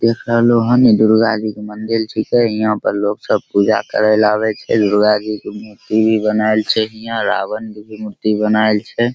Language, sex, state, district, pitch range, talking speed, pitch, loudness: Maithili, male, Bihar, Begusarai, 105-115 Hz, 205 wpm, 110 Hz, -15 LUFS